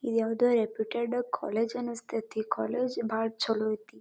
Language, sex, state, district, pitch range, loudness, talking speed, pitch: Kannada, female, Karnataka, Dharwad, 220-240 Hz, -30 LUFS, 120 wpm, 225 Hz